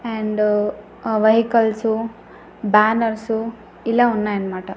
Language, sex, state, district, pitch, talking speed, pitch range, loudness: Telugu, female, Andhra Pradesh, Annamaya, 220 Hz, 100 wpm, 210-225 Hz, -19 LUFS